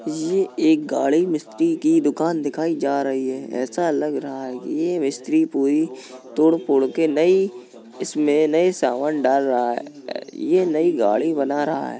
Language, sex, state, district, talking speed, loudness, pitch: Hindi, female, Uttar Pradesh, Jalaun, 170 wpm, -20 LUFS, 155 Hz